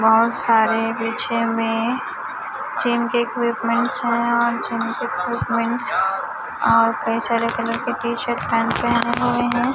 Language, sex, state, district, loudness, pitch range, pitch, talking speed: Hindi, male, Chhattisgarh, Raipur, -20 LUFS, 225-240 Hz, 235 Hz, 140 wpm